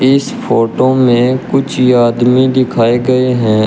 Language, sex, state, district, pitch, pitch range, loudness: Hindi, male, Uttar Pradesh, Shamli, 125 Hz, 120-130 Hz, -11 LUFS